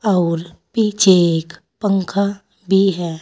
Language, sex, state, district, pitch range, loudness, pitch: Hindi, female, Uttar Pradesh, Saharanpur, 170-200 Hz, -17 LUFS, 195 Hz